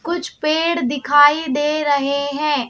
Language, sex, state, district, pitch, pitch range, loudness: Hindi, female, Madhya Pradesh, Bhopal, 290 Hz, 285-310 Hz, -17 LUFS